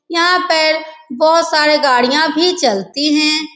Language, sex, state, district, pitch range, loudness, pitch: Hindi, female, Uttar Pradesh, Etah, 295-325 Hz, -13 LUFS, 310 Hz